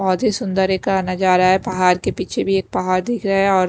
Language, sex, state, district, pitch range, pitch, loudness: Hindi, female, Himachal Pradesh, Shimla, 185-195 Hz, 190 Hz, -18 LUFS